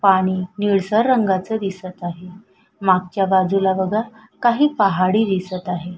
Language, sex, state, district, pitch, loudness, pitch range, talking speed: Marathi, female, Maharashtra, Sindhudurg, 190 Hz, -19 LUFS, 185-215 Hz, 120 wpm